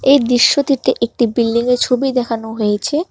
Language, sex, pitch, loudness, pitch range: Bengali, male, 245 Hz, -15 LUFS, 235-270 Hz